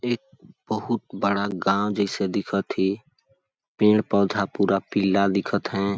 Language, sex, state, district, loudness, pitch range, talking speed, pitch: Awadhi, male, Chhattisgarh, Balrampur, -24 LUFS, 100-110 Hz, 120 wpm, 100 Hz